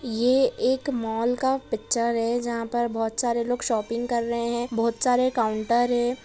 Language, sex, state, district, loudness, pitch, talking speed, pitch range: Hindi, female, Maharashtra, Pune, -25 LUFS, 235 Hz, 185 wpm, 230-245 Hz